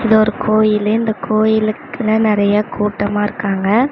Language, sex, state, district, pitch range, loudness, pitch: Tamil, female, Tamil Nadu, Namakkal, 205-220 Hz, -15 LUFS, 215 Hz